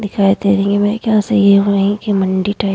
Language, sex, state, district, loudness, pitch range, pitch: Hindi, female, Uttar Pradesh, Hamirpur, -14 LUFS, 195-205 Hz, 200 Hz